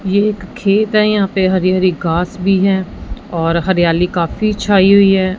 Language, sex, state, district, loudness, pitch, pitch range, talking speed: Hindi, female, Punjab, Fazilka, -14 LUFS, 190 Hz, 180-200 Hz, 190 wpm